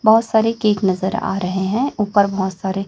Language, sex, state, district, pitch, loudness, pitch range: Hindi, female, Chhattisgarh, Raipur, 200 Hz, -18 LUFS, 190-220 Hz